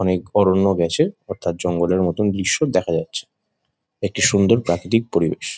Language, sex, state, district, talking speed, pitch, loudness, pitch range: Bengali, male, West Bengal, Jhargram, 140 wpm, 95 Hz, -19 LUFS, 85-100 Hz